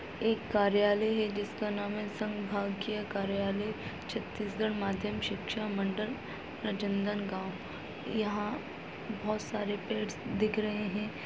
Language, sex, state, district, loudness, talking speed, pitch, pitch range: Hindi, female, Chhattisgarh, Rajnandgaon, -34 LUFS, 110 wpm, 210 Hz, 205-215 Hz